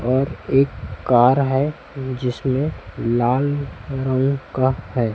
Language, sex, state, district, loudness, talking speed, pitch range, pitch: Hindi, male, Chhattisgarh, Raipur, -20 LUFS, 105 wpm, 120-135 Hz, 130 Hz